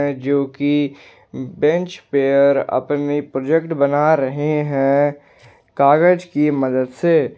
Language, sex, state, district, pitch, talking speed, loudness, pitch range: Hindi, male, Jharkhand, Ranchi, 145 Hz, 95 wpm, -17 LUFS, 140-150 Hz